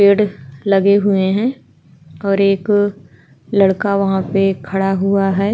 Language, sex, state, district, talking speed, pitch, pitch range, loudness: Hindi, female, Uttar Pradesh, Hamirpur, 130 wpm, 195 Hz, 190-200 Hz, -16 LUFS